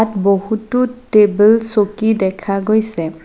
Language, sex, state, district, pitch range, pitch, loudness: Assamese, female, Assam, Sonitpur, 195-220 Hz, 210 Hz, -15 LUFS